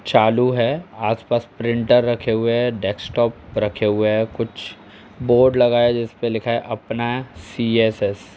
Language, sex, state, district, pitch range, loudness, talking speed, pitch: Hindi, male, Uttar Pradesh, Etah, 110-120 Hz, -19 LUFS, 160 wpm, 115 Hz